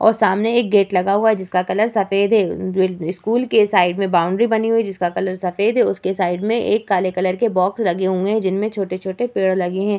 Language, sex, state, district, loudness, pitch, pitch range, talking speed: Hindi, female, Bihar, Vaishali, -18 LUFS, 195 Hz, 185-220 Hz, 240 wpm